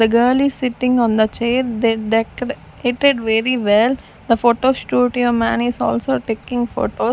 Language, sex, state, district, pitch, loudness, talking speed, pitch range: English, female, Chandigarh, Chandigarh, 240 Hz, -17 LUFS, 160 wpm, 225-250 Hz